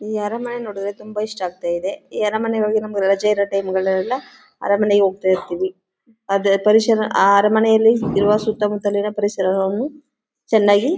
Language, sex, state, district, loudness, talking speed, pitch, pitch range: Kannada, female, Karnataka, Chamarajanagar, -18 LUFS, 135 wpm, 205 Hz, 195-220 Hz